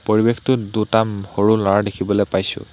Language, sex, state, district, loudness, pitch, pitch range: Assamese, male, Assam, Hailakandi, -18 LUFS, 110 Hz, 100-110 Hz